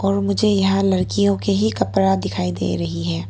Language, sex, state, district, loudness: Hindi, female, Arunachal Pradesh, Papum Pare, -19 LUFS